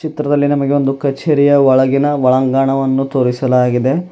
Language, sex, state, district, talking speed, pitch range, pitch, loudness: Kannada, male, Karnataka, Bidar, 100 wpm, 130-145 Hz, 135 Hz, -13 LUFS